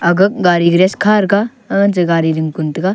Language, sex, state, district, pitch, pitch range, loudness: Wancho, male, Arunachal Pradesh, Longding, 185 Hz, 170-200 Hz, -13 LUFS